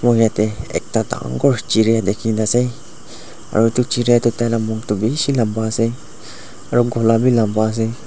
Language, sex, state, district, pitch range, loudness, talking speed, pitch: Nagamese, male, Nagaland, Dimapur, 110-120 Hz, -17 LUFS, 170 wpm, 115 Hz